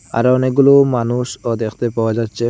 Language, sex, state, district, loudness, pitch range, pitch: Bengali, male, Assam, Hailakandi, -15 LUFS, 115-125 Hz, 120 Hz